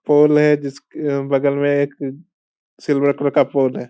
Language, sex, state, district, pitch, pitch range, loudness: Hindi, male, Bihar, Bhagalpur, 140 Hz, 140-150 Hz, -17 LUFS